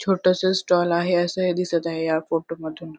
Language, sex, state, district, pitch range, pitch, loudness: Marathi, female, Maharashtra, Sindhudurg, 165-180 Hz, 175 Hz, -22 LUFS